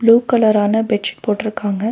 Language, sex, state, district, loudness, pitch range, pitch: Tamil, female, Tamil Nadu, Nilgiris, -16 LUFS, 210-230 Hz, 215 Hz